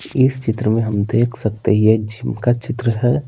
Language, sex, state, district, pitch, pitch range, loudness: Hindi, male, Bihar, Patna, 115 Hz, 110-120 Hz, -18 LUFS